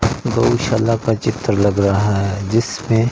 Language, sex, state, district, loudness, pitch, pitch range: Hindi, male, Punjab, Fazilka, -17 LUFS, 110 Hz, 100-115 Hz